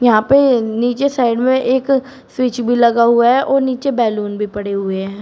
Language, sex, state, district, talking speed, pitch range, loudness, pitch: Hindi, female, Uttar Pradesh, Shamli, 205 wpm, 220-260 Hz, -15 LUFS, 245 Hz